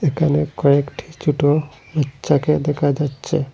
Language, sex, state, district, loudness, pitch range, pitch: Bengali, male, Assam, Hailakandi, -19 LUFS, 140-150 Hz, 145 Hz